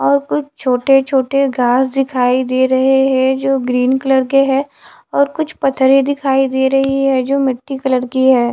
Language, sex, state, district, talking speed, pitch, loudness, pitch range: Hindi, female, Haryana, Charkhi Dadri, 185 wpm, 265 Hz, -14 LUFS, 255-275 Hz